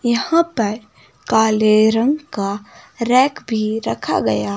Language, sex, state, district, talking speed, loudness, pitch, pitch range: Hindi, female, Himachal Pradesh, Shimla, 120 wpm, -17 LUFS, 220 Hz, 215-245 Hz